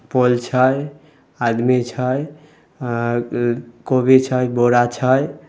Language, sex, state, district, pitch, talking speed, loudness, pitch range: Maithili, male, Bihar, Samastipur, 125 Hz, 90 wpm, -18 LUFS, 120-135 Hz